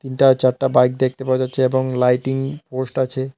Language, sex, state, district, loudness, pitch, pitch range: Bengali, male, Tripura, South Tripura, -18 LUFS, 130 Hz, 130-135 Hz